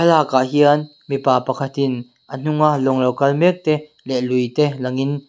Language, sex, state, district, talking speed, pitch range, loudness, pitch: Mizo, male, Mizoram, Aizawl, 195 wpm, 130-150 Hz, -18 LUFS, 140 Hz